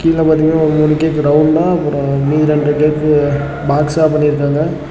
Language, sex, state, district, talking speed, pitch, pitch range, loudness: Tamil, male, Tamil Nadu, Namakkal, 160 wpm, 150 Hz, 145-155 Hz, -13 LUFS